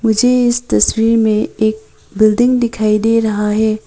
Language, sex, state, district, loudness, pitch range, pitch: Hindi, female, Arunachal Pradesh, Papum Pare, -13 LUFS, 215-230 Hz, 220 Hz